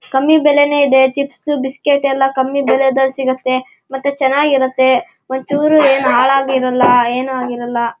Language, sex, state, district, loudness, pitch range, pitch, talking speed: Kannada, male, Karnataka, Shimoga, -14 LUFS, 260-280 Hz, 265 Hz, 120 wpm